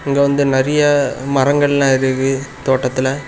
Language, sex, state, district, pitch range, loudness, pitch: Tamil, male, Tamil Nadu, Kanyakumari, 130-140 Hz, -15 LUFS, 140 Hz